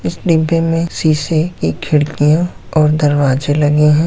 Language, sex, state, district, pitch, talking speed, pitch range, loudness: Hindi, male, Bihar, Samastipur, 155 Hz, 145 wpm, 145-165 Hz, -14 LUFS